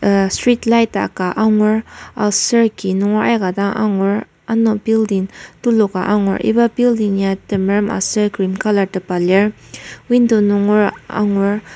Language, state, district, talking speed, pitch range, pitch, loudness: Ao, Nagaland, Kohima, 135 wpm, 195-220 Hz, 210 Hz, -16 LUFS